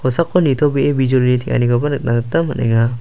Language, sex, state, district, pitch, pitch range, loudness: Garo, male, Meghalaya, South Garo Hills, 130 Hz, 120-145 Hz, -16 LUFS